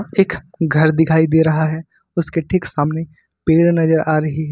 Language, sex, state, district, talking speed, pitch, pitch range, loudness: Hindi, male, Jharkhand, Ranchi, 185 wpm, 160 Hz, 155-165 Hz, -16 LUFS